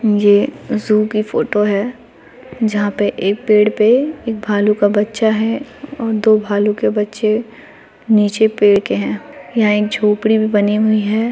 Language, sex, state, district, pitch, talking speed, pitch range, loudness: Hindi, female, Bihar, Muzaffarpur, 215 Hz, 165 wpm, 205-220 Hz, -15 LUFS